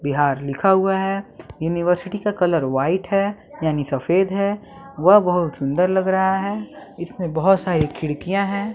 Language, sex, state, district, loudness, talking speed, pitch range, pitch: Hindi, male, Bihar, West Champaran, -20 LUFS, 160 wpm, 155-195 Hz, 180 Hz